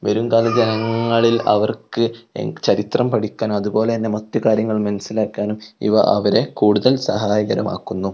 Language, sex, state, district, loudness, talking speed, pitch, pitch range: Malayalam, male, Kerala, Kozhikode, -18 LUFS, 95 wpm, 110 Hz, 105-115 Hz